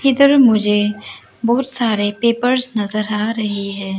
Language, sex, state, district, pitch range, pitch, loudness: Hindi, female, Arunachal Pradesh, Lower Dibang Valley, 210-250 Hz, 220 Hz, -16 LUFS